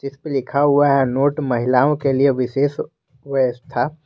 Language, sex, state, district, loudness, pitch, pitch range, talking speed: Hindi, male, Jharkhand, Garhwa, -18 LUFS, 140 Hz, 130-145 Hz, 160 wpm